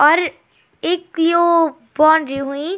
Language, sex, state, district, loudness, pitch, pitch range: Garhwali, female, Uttarakhand, Tehri Garhwal, -16 LUFS, 320 Hz, 295-340 Hz